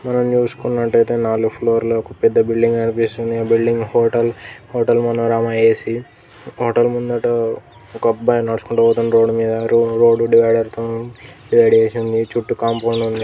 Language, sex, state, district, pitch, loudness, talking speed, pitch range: Telugu, male, Telangana, Nalgonda, 115 Hz, -16 LUFS, 160 wpm, 115-120 Hz